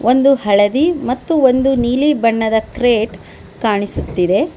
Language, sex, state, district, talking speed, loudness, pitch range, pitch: Kannada, female, Karnataka, Bangalore, 105 wpm, -15 LUFS, 220-270 Hz, 245 Hz